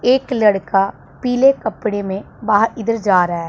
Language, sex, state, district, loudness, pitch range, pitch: Hindi, female, Punjab, Pathankot, -17 LUFS, 195-245 Hz, 215 Hz